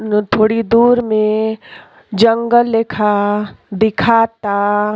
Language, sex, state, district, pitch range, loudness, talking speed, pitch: Bhojpuri, female, Uttar Pradesh, Ghazipur, 210-230 Hz, -14 LUFS, 95 wpm, 220 Hz